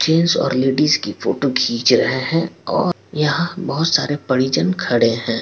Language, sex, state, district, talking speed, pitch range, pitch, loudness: Hindi, male, Bihar, Patna, 175 wpm, 130-165 Hz, 145 Hz, -17 LUFS